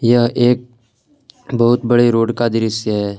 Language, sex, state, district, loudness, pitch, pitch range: Hindi, male, Jharkhand, Palamu, -15 LUFS, 120 Hz, 115-120 Hz